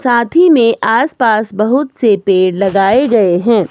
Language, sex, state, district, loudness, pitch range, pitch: Hindi, female, Himachal Pradesh, Shimla, -11 LUFS, 195-255 Hz, 225 Hz